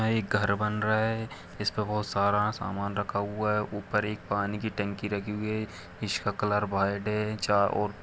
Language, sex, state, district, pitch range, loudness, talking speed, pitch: Hindi, male, Jharkhand, Sahebganj, 100-105 Hz, -29 LUFS, 210 wpm, 105 Hz